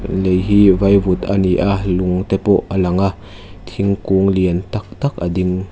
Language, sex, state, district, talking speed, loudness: Mizo, female, Mizoram, Aizawl, 190 wpm, -16 LUFS